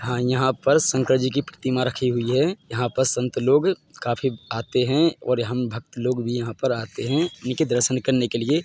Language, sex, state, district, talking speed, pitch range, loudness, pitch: Hindi, male, Chhattisgarh, Bilaspur, 210 wpm, 120-135 Hz, -23 LUFS, 125 Hz